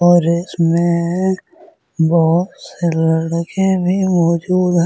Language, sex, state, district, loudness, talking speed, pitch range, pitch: Hindi, male, Delhi, New Delhi, -16 LUFS, 100 wpm, 170-185 Hz, 175 Hz